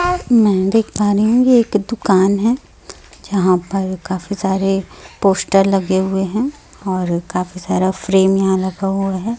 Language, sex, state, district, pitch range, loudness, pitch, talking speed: Hindi, female, Chhattisgarh, Raipur, 190-215 Hz, -16 LUFS, 195 Hz, 135 wpm